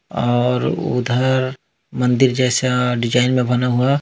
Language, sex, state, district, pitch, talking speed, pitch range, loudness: Hindi, male, Chhattisgarh, Kabirdham, 125 Hz, 120 wpm, 125-130 Hz, -17 LUFS